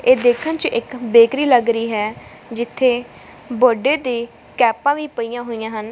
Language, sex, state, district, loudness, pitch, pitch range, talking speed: Punjabi, female, Punjab, Fazilka, -18 LUFS, 240 Hz, 230-260 Hz, 160 wpm